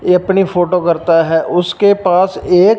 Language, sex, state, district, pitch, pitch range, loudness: Hindi, male, Punjab, Fazilka, 180 Hz, 170-190 Hz, -12 LUFS